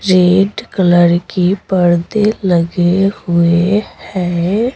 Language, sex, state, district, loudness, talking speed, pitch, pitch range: Hindi, female, Bihar, Patna, -13 LUFS, 90 wpm, 185 Hz, 175-195 Hz